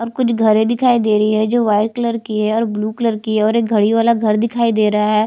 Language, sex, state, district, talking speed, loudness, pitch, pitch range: Hindi, female, Chhattisgarh, Jashpur, 285 wpm, -15 LUFS, 220 Hz, 215-235 Hz